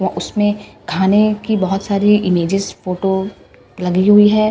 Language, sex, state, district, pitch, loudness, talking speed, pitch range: Hindi, female, Bihar, Katihar, 195 Hz, -15 LUFS, 145 wpm, 190-210 Hz